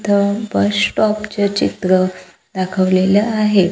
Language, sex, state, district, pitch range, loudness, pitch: Marathi, female, Maharashtra, Gondia, 185-210 Hz, -16 LUFS, 200 Hz